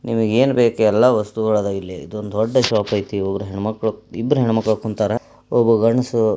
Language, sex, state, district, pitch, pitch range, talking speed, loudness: Kannada, male, Karnataka, Belgaum, 110 Hz, 105-115 Hz, 160 wpm, -19 LUFS